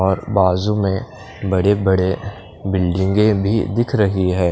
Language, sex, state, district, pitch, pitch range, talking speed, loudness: Hindi, male, Chandigarh, Chandigarh, 100 Hz, 95-105 Hz, 135 wpm, -18 LUFS